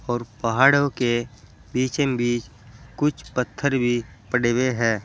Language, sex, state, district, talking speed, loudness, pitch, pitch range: Hindi, male, Uttar Pradesh, Saharanpur, 130 wpm, -22 LUFS, 120 Hz, 115-130 Hz